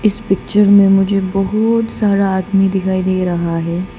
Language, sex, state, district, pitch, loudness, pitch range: Hindi, female, Arunachal Pradesh, Papum Pare, 195 Hz, -14 LUFS, 185-205 Hz